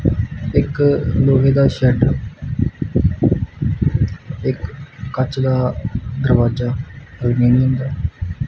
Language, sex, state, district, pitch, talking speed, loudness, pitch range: Punjabi, male, Punjab, Kapurthala, 130 Hz, 80 wpm, -18 LUFS, 120-135 Hz